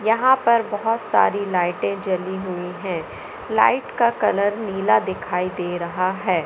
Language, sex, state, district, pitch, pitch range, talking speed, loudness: Hindi, female, Madhya Pradesh, Katni, 190 Hz, 180-210 Hz, 150 wpm, -21 LUFS